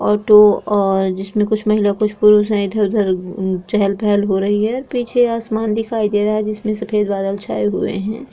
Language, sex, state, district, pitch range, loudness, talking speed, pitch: Hindi, female, Chhattisgarh, Korba, 200-215 Hz, -16 LUFS, 185 wpm, 210 Hz